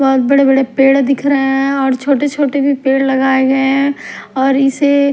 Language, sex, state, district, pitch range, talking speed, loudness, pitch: Hindi, female, Odisha, Khordha, 270-280 Hz, 175 wpm, -12 LUFS, 270 Hz